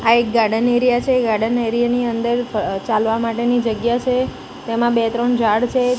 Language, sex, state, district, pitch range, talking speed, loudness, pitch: Gujarati, female, Gujarat, Gandhinagar, 230-245 Hz, 190 wpm, -18 LUFS, 235 Hz